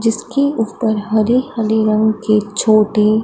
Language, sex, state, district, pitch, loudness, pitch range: Hindi, female, Punjab, Fazilka, 220 Hz, -15 LUFS, 215-225 Hz